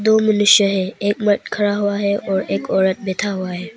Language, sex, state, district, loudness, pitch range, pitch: Hindi, female, Arunachal Pradesh, Papum Pare, -17 LUFS, 190-205 Hz, 205 Hz